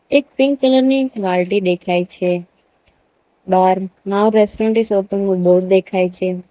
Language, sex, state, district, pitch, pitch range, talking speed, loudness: Gujarati, female, Gujarat, Valsad, 190 Hz, 180-220 Hz, 145 wpm, -16 LUFS